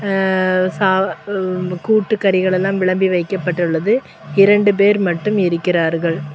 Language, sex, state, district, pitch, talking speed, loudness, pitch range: Tamil, female, Tamil Nadu, Kanyakumari, 190 Hz, 105 wpm, -16 LUFS, 180-200 Hz